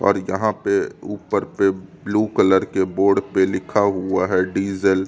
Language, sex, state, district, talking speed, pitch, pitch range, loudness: Hindi, male, Delhi, New Delhi, 175 wpm, 95 Hz, 95-100 Hz, -20 LUFS